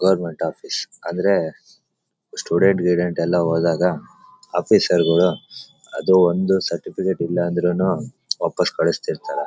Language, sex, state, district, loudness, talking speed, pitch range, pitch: Kannada, male, Karnataka, Bellary, -20 LUFS, 100 wpm, 85-95 Hz, 90 Hz